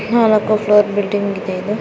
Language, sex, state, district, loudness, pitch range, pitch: Kannada, female, Karnataka, Raichur, -15 LUFS, 200-215 Hz, 210 Hz